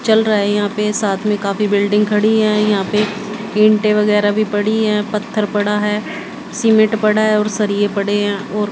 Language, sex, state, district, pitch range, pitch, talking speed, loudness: Hindi, female, Haryana, Jhajjar, 205-215 Hz, 210 Hz, 200 wpm, -15 LUFS